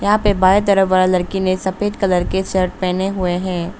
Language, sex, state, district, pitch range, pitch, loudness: Hindi, female, Arunachal Pradesh, Papum Pare, 185-195 Hz, 190 Hz, -17 LUFS